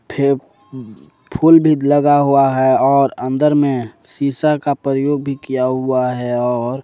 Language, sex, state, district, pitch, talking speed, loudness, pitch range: Hindi, male, Jharkhand, Ranchi, 135 Hz, 150 wpm, -15 LUFS, 130-145 Hz